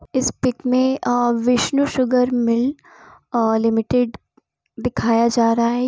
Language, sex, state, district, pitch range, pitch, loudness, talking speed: Hindi, female, Bihar, Gopalganj, 235-255 Hz, 245 Hz, -19 LUFS, 135 wpm